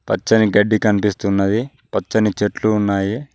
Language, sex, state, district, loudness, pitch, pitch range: Telugu, male, Telangana, Mahabubabad, -17 LUFS, 105 Hz, 100-110 Hz